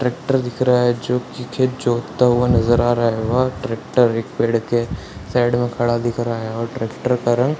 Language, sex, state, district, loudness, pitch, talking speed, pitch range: Hindi, male, Bihar, Purnia, -19 LUFS, 120 Hz, 230 wpm, 115-125 Hz